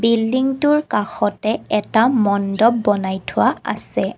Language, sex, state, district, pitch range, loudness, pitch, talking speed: Assamese, female, Assam, Kamrup Metropolitan, 200-235 Hz, -18 LUFS, 220 Hz, 100 wpm